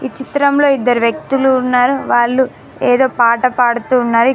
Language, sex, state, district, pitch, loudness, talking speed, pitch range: Telugu, female, Telangana, Mahabubabad, 255 Hz, -13 LUFS, 140 wpm, 240-265 Hz